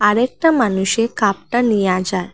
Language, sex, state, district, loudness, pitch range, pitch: Bengali, female, Assam, Hailakandi, -17 LUFS, 190-240 Hz, 210 Hz